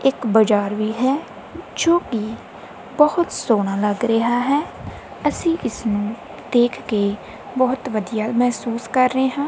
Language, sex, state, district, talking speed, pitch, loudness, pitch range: Punjabi, female, Punjab, Kapurthala, 135 wpm, 240 Hz, -20 LUFS, 215-265 Hz